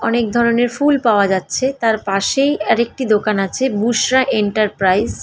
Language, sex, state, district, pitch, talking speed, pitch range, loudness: Bengali, female, West Bengal, Dakshin Dinajpur, 230 Hz, 170 wpm, 205-260 Hz, -16 LUFS